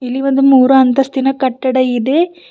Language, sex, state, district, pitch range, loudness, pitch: Kannada, female, Karnataka, Bidar, 255-270 Hz, -12 LUFS, 265 Hz